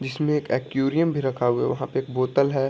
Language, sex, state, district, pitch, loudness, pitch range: Hindi, male, Bihar, Sitamarhi, 135 Hz, -24 LUFS, 130-145 Hz